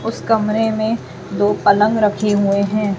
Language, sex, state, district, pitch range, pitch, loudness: Hindi, female, Chhattisgarh, Raipur, 205-215 Hz, 210 Hz, -16 LUFS